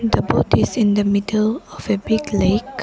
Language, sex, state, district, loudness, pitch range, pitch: English, female, Arunachal Pradesh, Lower Dibang Valley, -18 LUFS, 205-225 Hz, 215 Hz